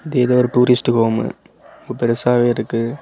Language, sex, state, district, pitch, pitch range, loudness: Tamil, male, Tamil Nadu, Kanyakumari, 120 Hz, 115-125 Hz, -17 LUFS